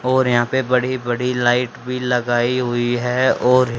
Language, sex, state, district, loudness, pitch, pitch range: Hindi, male, Haryana, Charkhi Dadri, -18 LUFS, 125 Hz, 120-125 Hz